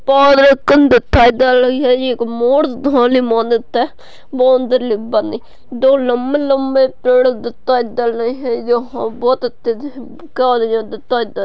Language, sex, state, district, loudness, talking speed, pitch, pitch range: Hindi, female, Maharashtra, Sindhudurg, -14 LUFS, 95 wpm, 250 Hz, 235-265 Hz